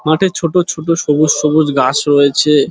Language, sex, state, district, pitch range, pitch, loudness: Bengali, male, West Bengal, Dakshin Dinajpur, 145-165 Hz, 155 Hz, -13 LUFS